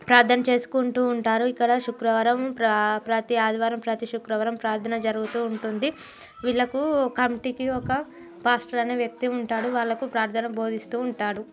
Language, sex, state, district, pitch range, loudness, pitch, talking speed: Telugu, female, Telangana, Nalgonda, 225-250 Hz, -25 LUFS, 235 Hz, 125 wpm